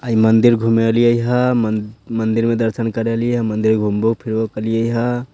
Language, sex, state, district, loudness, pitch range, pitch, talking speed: Bhojpuri, male, Bihar, Sitamarhi, -17 LUFS, 110-120 Hz, 115 Hz, 200 wpm